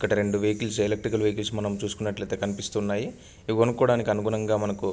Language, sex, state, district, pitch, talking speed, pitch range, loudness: Telugu, male, Andhra Pradesh, Anantapur, 105 Hz, 170 wpm, 105-110 Hz, -26 LUFS